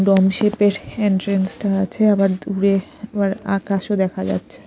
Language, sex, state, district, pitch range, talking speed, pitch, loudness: Bengali, female, Odisha, Khordha, 190-205 Hz, 155 wpm, 195 Hz, -19 LUFS